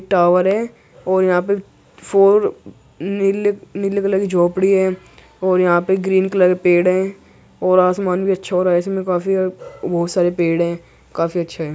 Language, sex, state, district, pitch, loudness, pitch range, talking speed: Hindi, male, Uttar Pradesh, Muzaffarnagar, 185 Hz, -17 LUFS, 180-195 Hz, 185 wpm